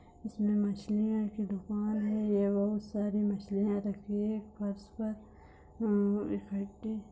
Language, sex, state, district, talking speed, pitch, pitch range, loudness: Hindi, female, Bihar, Begusarai, 120 wpm, 210 Hz, 205-215 Hz, -33 LUFS